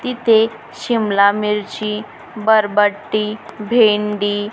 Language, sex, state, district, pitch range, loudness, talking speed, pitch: Marathi, female, Maharashtra, Gondia, 205-220 Hz, -16 LUFS, 80 wpm, 210 Hz